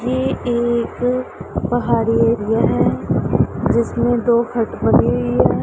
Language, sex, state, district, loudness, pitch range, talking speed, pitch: Hindi, female, Punjab, Pathankot, -18 LUFS, 230-245 Hz, 115 wpm, 235 Hz